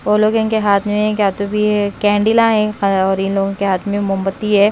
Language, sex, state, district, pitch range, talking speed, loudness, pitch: Hindi, female, Haryana, Rohtak, 195-210 Hz, 230 wpm, -15 LUFS, 205 Hz